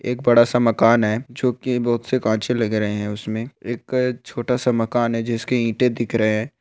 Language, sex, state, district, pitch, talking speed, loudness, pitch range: Hindi, male, Rajasthan, Churu, 120 Hz, 210 wpm, -20 LUFS, 110-125 Hz